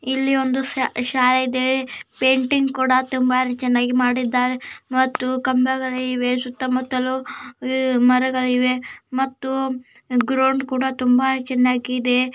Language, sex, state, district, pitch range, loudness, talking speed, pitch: Kannada, female, Karnataka, Chamarajanagar, 250-260 Hz, -20 LUFS, 85 wpm, 255 Hz